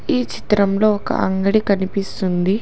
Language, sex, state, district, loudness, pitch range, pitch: Telugu, female, Telangana, Hyderabad, -18 LUFS, 190-215 Hz, 200 Hz